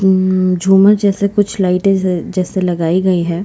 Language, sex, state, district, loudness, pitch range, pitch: Hindi, female, Chhattisgarh, Bastar, -13 LUFS, 180-195 Hz, 185 Hz